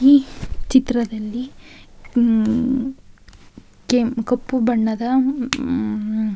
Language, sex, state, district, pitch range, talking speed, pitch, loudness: Kannada, female, Karnataka, Raichur, 225-260 Hz, 65 wpm, 245 Hz, -20 LUFS